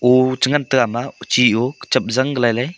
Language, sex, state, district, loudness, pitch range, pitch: Wancho, male, Arunachal Pradesh, Longding, -17 LUFS, 120-130 Hz, 125 Hz